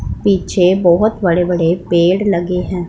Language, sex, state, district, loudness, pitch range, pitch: Hindi, female, Punjab, Pathankot, -14 LUFS, 170-185 Hz, 180 Hz